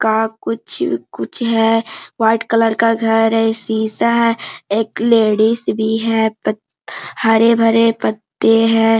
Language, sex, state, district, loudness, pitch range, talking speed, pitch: Hindi, female, Jharkhand, Sahebganj, -15 LUFS, 220-230 Hz, 140 wpm, 225 Hz